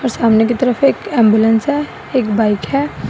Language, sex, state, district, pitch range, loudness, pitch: Hindi, female, Assam, Sonitpur, 220-275 Hz, -14 LUFS, 240 Hz